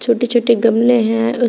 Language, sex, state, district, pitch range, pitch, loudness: Hindi, female, Uttar Pradesh, Shamli, 230-240 Hz, 235 Hz, -14 LUFS